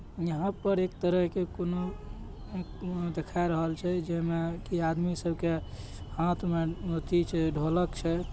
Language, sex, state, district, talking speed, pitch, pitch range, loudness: Hindi, male, Bihar, Purnia, 115 wpm, 170 Hz, 165-180 Hz, -31 LUFS